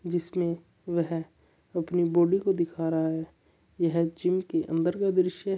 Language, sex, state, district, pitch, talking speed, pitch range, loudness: Marwari, male, Rajasthan, Churu, 170 Hz, 160 wpm, 165-180 Hz, -28 LUFS